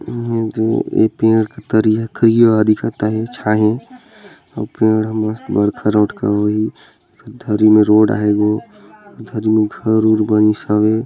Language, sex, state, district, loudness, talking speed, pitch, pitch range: Chhattisgarhi, male, Chhattisgarh, Sarguja, -15 LUFS, 140 wpm, 110 Hz, 105-115 Hz